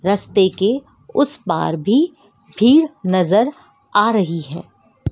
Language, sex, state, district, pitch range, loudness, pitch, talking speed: Hindi, female, Madhya Pradesh, Dhar, 185-275 Hz, -17 LUFS, 205 Hz, 115 wpm